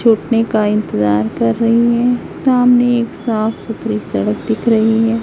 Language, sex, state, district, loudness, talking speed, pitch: Hindi, female, Chhattisgarh, Raipur, -15 LUFS, 160 wpm, 225 Hz